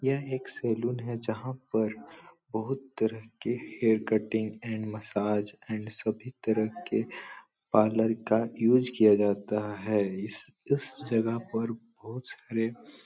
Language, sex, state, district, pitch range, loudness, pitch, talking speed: Hindi, male, Bihar, Supaul, 110-120 Hz, -30 LUFS, 110 Hz, 140 wpm